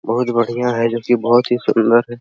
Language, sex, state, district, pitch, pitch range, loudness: Hindi, male, Bihar, Araria, 120 Hz, 115-120 Hz, -16 LUFS